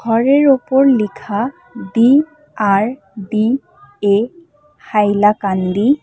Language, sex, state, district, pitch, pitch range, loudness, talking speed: Bengali, female, Assam, Hailakandi, 230 Hz, 205-275 Hz, -15 LUFS, 50 wpm